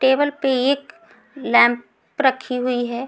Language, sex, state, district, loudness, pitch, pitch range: Hindi, female, Chhattisgarh, Raipur, -19 LUFS, 260 Hz, 245-280 Hz